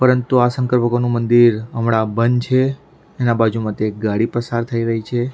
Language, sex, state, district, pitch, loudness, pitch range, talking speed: Gujarati, male, Maharashtra, Mumbai Suburban, 120 Hz, -17 LUFS, 115-125 Hz, 180 wpm